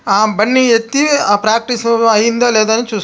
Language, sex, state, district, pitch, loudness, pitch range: Telugu, male, Andhra Pradesh, Krishna, 230 Hz, -12 LUFS, 215-245 Hz